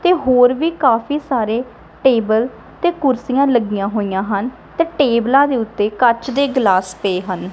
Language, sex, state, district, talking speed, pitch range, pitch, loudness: Punjabi, female, Punjab, Kapurthala, 160 wpm, 210-275 Hz, 245 Hz, -16 LUFS